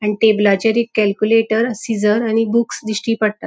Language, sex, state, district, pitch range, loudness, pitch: Konkani, female, Goa, North and South Goa, 210-225 Hz, -16 LUFS, 220 Hz